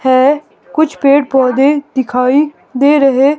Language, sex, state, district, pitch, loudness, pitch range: Hindi, female, Himachal Pradesh, Shimla, 275 Hz, -12 LUFS, 260-290 Hz